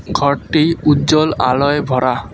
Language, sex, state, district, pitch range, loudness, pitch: Bengali, male, West Bengal, Alipurduar, 135-155 Hz, -14 LUFS, 145 Hz